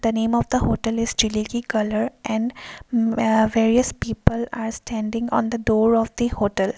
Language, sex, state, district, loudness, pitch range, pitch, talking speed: English, female, Assam, Kamrup Metropolitan, -22 LUFS, 220-235 Hz, 225 Hz, 175 wpm